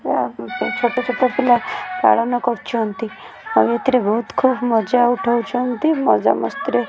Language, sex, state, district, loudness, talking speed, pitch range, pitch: Odia, female, Odisha, Khordha, -18 LUFS, 120 wpm, 225-250 Hz, 240 Hz